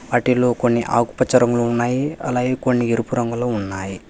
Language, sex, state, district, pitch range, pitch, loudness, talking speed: Telugu, male, Telangana, Hyderabad, 120-125 Hz, 120 Hz, -19 LUFS, 145 wpm